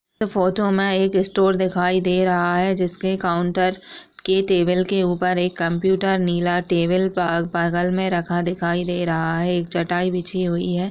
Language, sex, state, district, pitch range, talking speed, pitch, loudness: Hindi, female, Uttar Pradesh, Budaun, 175-190 Hz, 160 wpm, 180 Hz, -20 LUFS